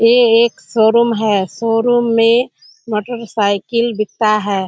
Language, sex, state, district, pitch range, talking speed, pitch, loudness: Hindi, female, Bihar, Kishanganj, 215-235 Hz, 115 wpm, 230 Hz, -14 LUFS